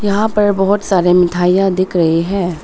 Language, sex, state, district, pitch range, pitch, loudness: Hindi, female, Arunachal Pradesh, Papum Pare, 175-200 Hz, 185 Hz, -13 LUFS